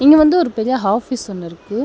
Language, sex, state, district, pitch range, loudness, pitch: Tamil, female, Tamil Nadu, Chennai, 200-280 Hz, -16 LUFS, 245 Hz